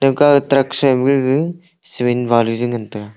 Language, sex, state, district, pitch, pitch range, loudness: Wancho, male, Arunachal Pradesh, Longding, 135 Hz, 120-140 Hz, -16 LUFS